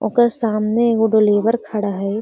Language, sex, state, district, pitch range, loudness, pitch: Magahi, female, Bihar, Gaya, 210-230 Hz, -17 LUFS, 220 Hz